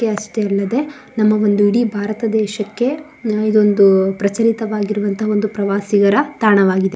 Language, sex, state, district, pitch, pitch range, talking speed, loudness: Kannada, female, Karnataka, Shimoga, 210 Hz, 205-225 Hz, 85 wpm, -16 LUFS